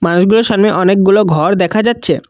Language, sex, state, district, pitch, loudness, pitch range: Bengali, male, Assam, Kamrup Metropolitan, 200 Hz, -11 LUFS, 180-210 Hz